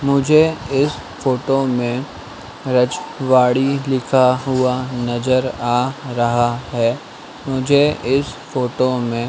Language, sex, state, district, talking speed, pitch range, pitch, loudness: Hindi, male, Madhya Pradesh, Dhar, 105 wpm, 125-135 Hz, 130 Hz, -18 LUFS